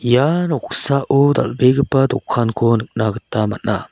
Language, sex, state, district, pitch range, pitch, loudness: Garo, male, Meghalaya, South Garo Hills, 115-140 Hz, 125 Hz, -16 LUFS